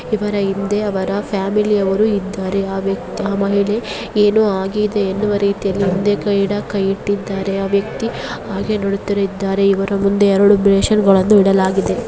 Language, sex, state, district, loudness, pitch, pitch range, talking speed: Kannada, female, Karnataka, Bellary, -16 LUFS, 200 Hz, 195-205 Hz, 125 wpm